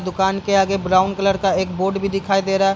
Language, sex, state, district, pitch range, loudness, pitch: Hindi, male, Bihar, Darbhanga, 190-195 Hz, -18 LUFS, 195 Hz